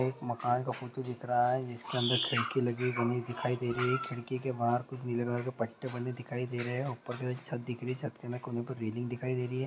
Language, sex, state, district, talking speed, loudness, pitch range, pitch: Hindi, male, Chhattisgarh, Bastar, 290 wpm, -34 LUFS, 120-130 Hz, 125 Hz